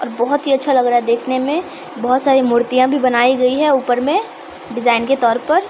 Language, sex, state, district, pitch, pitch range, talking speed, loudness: Maithili, female, Bihar, Samastipur, 255 Hz, 240-275 Hz, 240 wpm, -15 LUFS